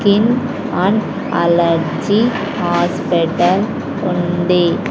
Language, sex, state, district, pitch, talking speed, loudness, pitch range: Telugu, female, Andhra Pradesh, Sri Satya Sai, 190 Hz, 60 wpm, -16 LUFS, 175-215 Hz